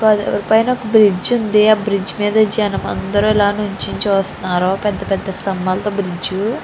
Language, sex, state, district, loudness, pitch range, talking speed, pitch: Telugu, female, Andhra Pradesh, Chittoor, -16 LUFS, 195-215 Hz, 135 wpm, 205 Hz